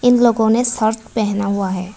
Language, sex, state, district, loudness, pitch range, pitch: Hindi, female, Tripura, West Tripura, -17 LUFS, 200-240 Hz, 220 Hz